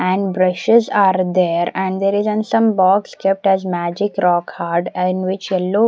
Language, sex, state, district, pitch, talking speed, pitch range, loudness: English, female, Odisha, Nuapada, 190 Hz, 195 wpm, 180-200 Hz, -17 LUFS